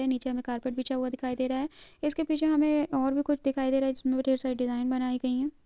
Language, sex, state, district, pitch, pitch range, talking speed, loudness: Hindi, female, Uttarakhand, Uttarkashi, 265 Hz, 255-285 Hz, 295 wpm, -29 LUFS